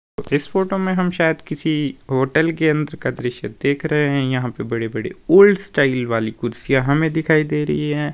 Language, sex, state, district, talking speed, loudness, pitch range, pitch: Hindi, male, Himachal Pradesh, Shimla, 200 wpm, -19 LUFS, 125-160 Hz, 145 Hz